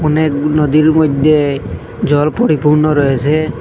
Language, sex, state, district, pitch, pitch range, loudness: Bengali, male, Assam, Hailakandi, 150 Hz, 145-155 Hz, -12 LUFS